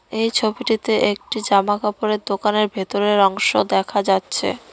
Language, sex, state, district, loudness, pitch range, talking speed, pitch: Bengali, female, West Bengal, Cooch Behar, -19 LUFS, 195-220 Hz, 115 wpm, 205 Hz